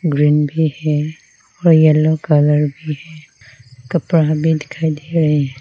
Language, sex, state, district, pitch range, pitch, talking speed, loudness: Hindi, female, Arunachal Pradesh, Lower Dibang Valley, 150-160 Hz, 155 Hz, 150 wpm, -16 LUFS